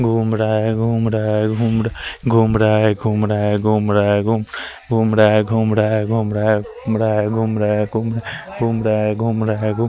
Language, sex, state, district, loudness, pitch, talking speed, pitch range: Hindi, male, Chandigarh, Chandigarh, -17 LUFS, 110 Hz, 190 wpm, 105-115 Hz